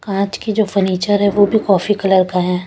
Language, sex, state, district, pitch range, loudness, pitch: Hindi, female, Chandigarh, Chandigarh, 185-205 Hz, -15 LUFS, 200 Hz